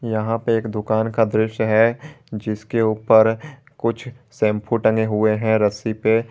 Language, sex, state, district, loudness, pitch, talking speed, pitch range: Hindi, male, Jharkhand, Garhwa, -19 LUFS, 110 Hz, 150 wpm, 110-115 Hz